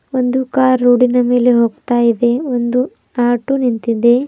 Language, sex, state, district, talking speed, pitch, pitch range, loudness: Kannada, female, Karnataka, Bidar, 125 wpm, 245 Hz, 240-255 Hz, -14 LUFS